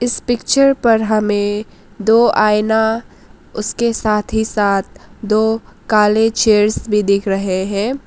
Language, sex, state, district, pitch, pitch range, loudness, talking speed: Hindi, female, Arunachal Pradesh, Lower Dibang Valley, 215 Hz, 205-225 Hz, -15 LUFS, 120 wpm